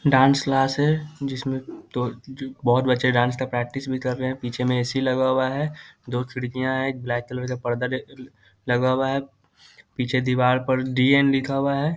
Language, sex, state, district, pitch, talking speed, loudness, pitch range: Hindi, male, Bihar, Muzaffarpur, 130 Hz, 210 wpm, -23 LUFS, 125-135 Hz